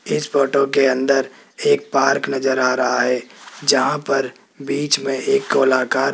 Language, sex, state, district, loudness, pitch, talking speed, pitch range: Hindi, male, Rajasthan, Jaipur, -18 LUFS, 135 Hz, 165 wpm, 130-140 Hz